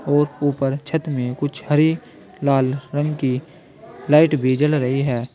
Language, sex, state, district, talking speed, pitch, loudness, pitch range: Hindi, male, Uttar Pradesh, Saharanpur, 155 wpm, 145 Hz, -20 LUFS, 135-150 Hz